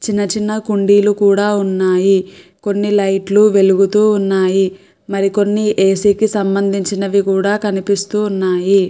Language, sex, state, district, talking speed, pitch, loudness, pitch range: Telugu, female, Andhra Pradesh, Krishna, 115 wpm, 200 Hz, -14 LUFS, 195-205 Hz